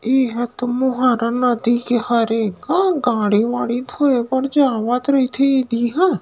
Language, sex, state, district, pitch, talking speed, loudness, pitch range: Chhattisgarhi, male, Chhattisgarh, Rajnandgaon, 245 Hz, 125 wpm, -18 LUFS, 235-265 Hz